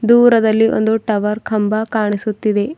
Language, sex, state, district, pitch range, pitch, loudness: Kannada, female, Karnataka, Bidar, 210-225 Hz, 215 Hz, -15 LUFS